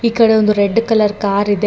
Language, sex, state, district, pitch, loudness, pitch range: Kannada, female, Karnataka, Bangalore, 210 Hz, -14 LUFS, 205-225 Hz